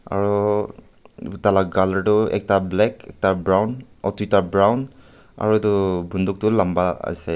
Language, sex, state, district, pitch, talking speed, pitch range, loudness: Nagamese, male, Nagaland, Kohima, 100 Hz, 140 wpm, 95-105 Hz, -20 LUFS